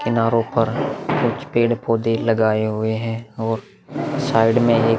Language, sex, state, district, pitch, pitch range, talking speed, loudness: Hindi, male, Bihar, Vaishali, 115 Hz, 115-120 Hz, 145 wpm, -20 LUFS